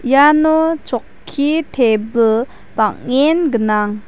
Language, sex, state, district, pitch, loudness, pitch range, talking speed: Garo, female, Meghalaya, West Garo Hills, 270 Hz, -15 LUFS, 225-305 Hz, 75 wpm